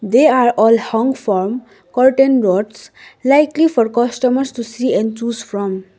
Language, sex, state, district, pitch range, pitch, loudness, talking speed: English, female, Sikkim, Gangtok, 220-260 Hz, 240 Hz, -15 LUFS, 150 wpm